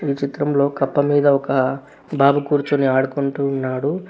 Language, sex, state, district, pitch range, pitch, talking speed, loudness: Telugu, male, Telangana, Hyderabad, 135-145 Hz, 140 Hz, 130 wpm, -19 LUFS